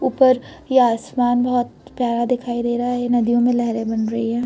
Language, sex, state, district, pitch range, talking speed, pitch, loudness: Hindi, female, Uttar Pradesh, Etah, 235-245 Hz, 200 wpm, 245 Hz, -19 LUFS